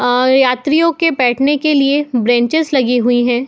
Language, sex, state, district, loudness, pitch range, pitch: Hindi, female, Uttar Pradesh, Muzaffarnagar, -13 LUFS, 245-295 Hz, 265 Hz